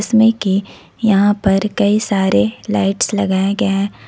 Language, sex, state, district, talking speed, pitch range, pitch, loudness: Hindi, female, Jharkhand, Ranchi, 145 wpm, 195-210 Hz, 200 Hz, -15 LUFS